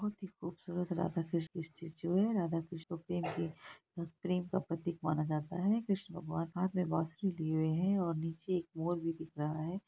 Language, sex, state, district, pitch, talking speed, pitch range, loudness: Hindi, female, Bihar, Araria, 170 Hz, 190 wpm, 165-180 Hz, -37 LUFS